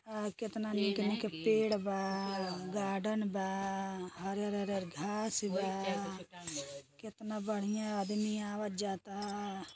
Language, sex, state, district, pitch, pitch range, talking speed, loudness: Bhojpuri, female, Uttar Pradesh, Deoria, 200 Hz, 195-210 Hz, 100 wpm, -37 LUFS